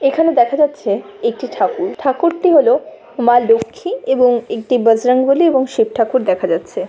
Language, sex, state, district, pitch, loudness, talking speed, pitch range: Bengali, female, West Bengal, Malda, 270 Hz, -15 LUFS, 165 wpm, 240-335 Hz